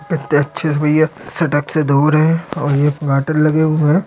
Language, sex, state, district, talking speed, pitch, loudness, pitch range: Hindi, male, Chhattisgarh, Korba, 175 wpm, 155 Hz, -15 LUFS, 145-160 Hz